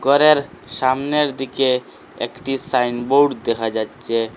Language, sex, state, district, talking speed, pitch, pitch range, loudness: Bengali, male, Assam, Hailakandi, 95 wpm, 135 Hz, 120-140 Hz, -19 LUFS